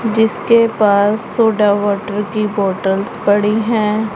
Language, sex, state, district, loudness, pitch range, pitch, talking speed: Hindi, female, Punjab, Pathankot, -15 LUFS, 205-220 Hz, 210 Hz, 115 wpm